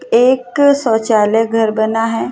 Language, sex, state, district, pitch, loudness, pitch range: Hindi, female, Uttar Pradesh, Hamirpur, 225 Hz, -13 LUFS, 220-245 Hz